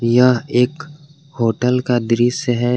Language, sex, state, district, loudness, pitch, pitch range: Hindi, male, Jharkhand, Garhwa, -17 LUFS, 125 Hz, 120-135 Hz